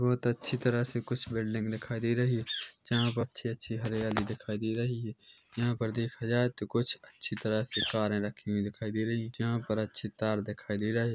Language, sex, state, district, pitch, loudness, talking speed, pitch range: Hindi, male, Chhattisgarh, Korba, 115 Hz, -32 LUFS, 215 wpm, 110-120 Hz